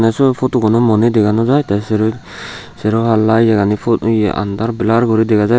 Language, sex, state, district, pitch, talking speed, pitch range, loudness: Chakma, male, Tripura, Unakoti, 110 Hz, 185 wpm, 105-115 Hz, -14 LUFS